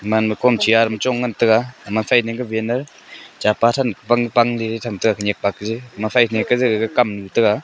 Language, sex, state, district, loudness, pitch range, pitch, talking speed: Wancho, male, Arunachal Pradesh, Longding, -18 LUFS, 110-120 Hz, 115 Hz, 135 wpm